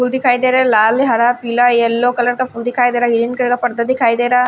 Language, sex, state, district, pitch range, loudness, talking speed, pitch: Hindi, female, Punjab, Kapurthala, 235-250 Hz, -14 LUFS, 320 wpm, 245 Hz